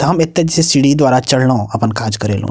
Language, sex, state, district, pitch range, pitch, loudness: Maithili, male, Bihar, Purnia, 115-155 Hz, 130 Hz, -13 LUFS